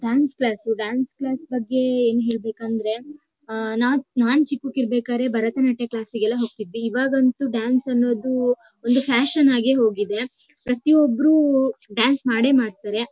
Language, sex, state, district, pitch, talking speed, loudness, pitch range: Kannada, female, Karnataka, Shimoga, 245 Hz, 130 wpm, -21 LUFS, 230-265 Hz